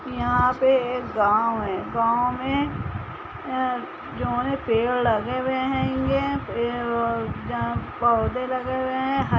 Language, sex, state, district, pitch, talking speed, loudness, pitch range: Hindi, female, Uttar Pradesh, Budaun, 245 Hz, 120 wpm, -24 LUFS, 220-255 Hz